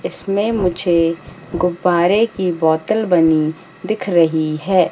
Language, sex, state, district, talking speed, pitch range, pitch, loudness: Hindi, female, Madhya Pradesh, Katni, 110 wpm, 165-195 Hz, 180 Hz, -16 LUFS